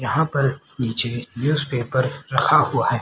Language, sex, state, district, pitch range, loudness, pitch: Hindi, male, Haryana, Rohtak, 120-140 Hz, -20 LUFS, 130 Hz